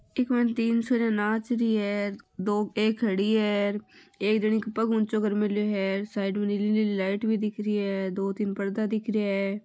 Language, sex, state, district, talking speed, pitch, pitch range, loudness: Marwari, female, Rajasthan, Nagaur, 215 wpm, 210 Hz, 205-220 Hz, -27 LUFS